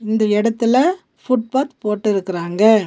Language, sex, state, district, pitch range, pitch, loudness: Tamil, female, Tamil Nadu, Nilgiris, 210-255 Hz, 220 Hz, -18 LUFS